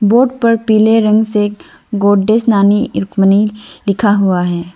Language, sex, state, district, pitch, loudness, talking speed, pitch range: Hindi, female, Arunachal Pradesh, Lower Dibang Valley, 210 Hz, -12 LUFS, 140 wpm, 200-220 Hz